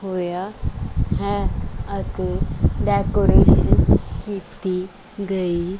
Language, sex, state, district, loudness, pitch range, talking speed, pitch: Punjabi, female, Punjab, Kapurthala, -21 LUFS, 180-195 Hz, 60 wpm, 190 Hz